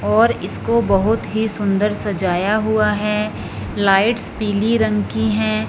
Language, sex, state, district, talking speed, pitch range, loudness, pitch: Hindi, female, Punjab, Fazilka, 135 wpm, 195-220 Hz, -18 LUFS, 210 Hz